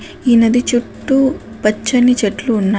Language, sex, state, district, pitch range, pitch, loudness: Telugu, female, Telangana, Adilabad, 215-250 Hz, 240 Hz, -14 LUFS